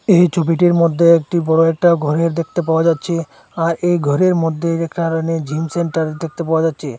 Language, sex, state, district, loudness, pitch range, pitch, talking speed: Bengali, male, Assam, Hailakandi, -16 LUFS, 160-170 Hz, 165 Hz, 180 wpm